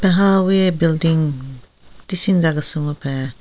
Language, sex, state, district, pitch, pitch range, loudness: Rengma, female, Nagaland, Kohima, 160 Hz, 135-185 Hz, -15 LUFS